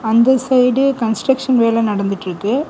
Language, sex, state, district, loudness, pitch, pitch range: Tamil, female, Tamil Nadu, Kanyakumari, -15 LUFS, 235 Hz, 220-260 Hz